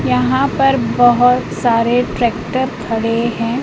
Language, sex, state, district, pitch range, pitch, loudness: Hindi, female, Madhya Pradesh, Umaria, 225-245 Hz, 235 Hz, -15 LUFS